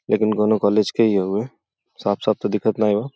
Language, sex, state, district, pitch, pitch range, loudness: Bhojpuri, male, Uttar Pradesh, Gorakhpur, 105 Hz, 105-110 Hz, -20 LUFS